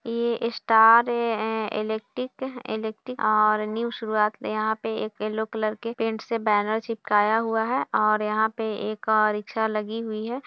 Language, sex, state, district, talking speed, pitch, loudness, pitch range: Hindi, female, Bihar, Kishanganj, 165 wpm, 220 Hz, -24 LUFS, 215-230 Hz